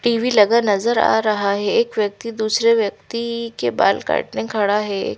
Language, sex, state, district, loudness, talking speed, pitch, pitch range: Hindi, female, Bihar, Katihar, -18 LUFS, 175 wpm, 225 Hz, 210-235 Hz